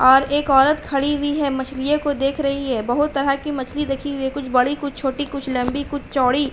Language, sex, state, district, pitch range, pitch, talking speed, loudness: Hindi, female, Uttar Pradesh, Hamirpur, 265-290 Hz, 275 Hz, 240 wpm, -20 LUFS